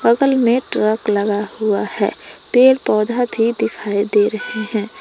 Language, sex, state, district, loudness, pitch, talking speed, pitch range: Hindi, female, Jharkhand, Palamu, -17 LUFS, 215 Hz, 155 wpm, 210-240 Hz